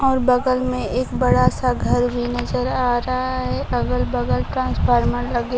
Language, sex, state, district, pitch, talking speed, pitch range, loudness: Hindi, female, Bihar, Kaimur, 250 Hz, 170 wpm, 245-255 Hz, -20 LUFS